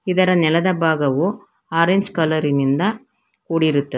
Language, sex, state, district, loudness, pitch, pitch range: Kannada, female, Karnataka, Bangalore, -18 LUFS, 165 Hz, 155-185 Hz